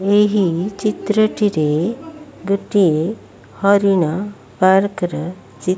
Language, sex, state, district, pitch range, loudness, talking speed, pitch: Odia, female, Odisha, Malkangiri, 175-210 Hz, -17 LUFS, 95 wpm, 195 Hz